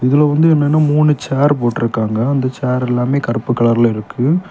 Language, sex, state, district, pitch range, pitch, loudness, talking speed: Tamil, male, Tamil Nadu, Kanyakumari, 120-145 Hz, 130 Hz, -15 LUFS, 175 wpm